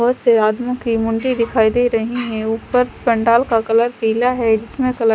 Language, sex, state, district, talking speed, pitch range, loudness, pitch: Hindi, female, Chandigarh, Chandigarh, 210 wpm, 225-245 Hz, -17 LUFS, 235 Hz